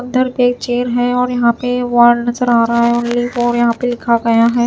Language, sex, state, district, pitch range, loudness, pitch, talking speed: Hindi, female, Chhattisgarh, Raipur, 235-245 Hz, -14 LUFS, 240 Hz, 270 wpm